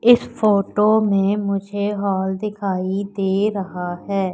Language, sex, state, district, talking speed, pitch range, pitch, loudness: Hindi, female, Madhya Pradesh, Katni, 125 wpm, 190-205 Hz, 200 Hz, -20 LUFS